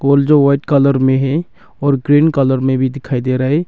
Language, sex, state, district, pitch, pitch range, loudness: Hindi, male, Arunachal Pradesh, Longding, 140 Hz, 130-145 Hz, -14 LUFS